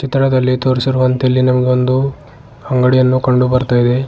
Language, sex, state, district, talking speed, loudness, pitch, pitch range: Kannada, male, Karnataka, Bidar, 130 wpm, -13 LUFS, 130 Hz, 125-130 Hz